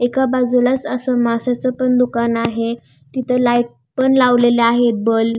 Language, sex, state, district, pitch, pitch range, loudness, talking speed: Marathi, female, Maharashtra, Pune, 245 Hz, 230-255 Hz, -16 LUFS, 155 wpm